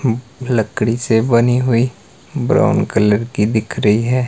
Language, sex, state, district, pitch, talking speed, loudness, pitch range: Hindi, male, Himachal Pradesh, Shimla, 115 Hz, 140 wpm, -16 LUFS, 110-125 Hz